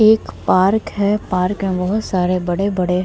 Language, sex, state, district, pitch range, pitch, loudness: Hindi, female, Bihar, Vaishali, 180-205 Hz, 190 Hz, -18 LUFS